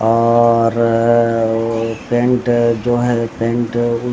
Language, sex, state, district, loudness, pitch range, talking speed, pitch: Hindi, male, Bihar, Samastipur, -15 LUFS, 115-120 Hz, 115 wpm, 115 Hz